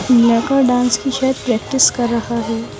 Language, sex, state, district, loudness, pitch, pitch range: Hindi, female, Bihar, West Champaran, -15 LUFS, 245 Hz, 230-260 Hz